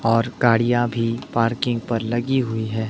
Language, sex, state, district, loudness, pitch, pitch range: Hindi, male, Himachal Pradesh, Shimla, -21 LUFS, 115 Hz, 115-120 Hz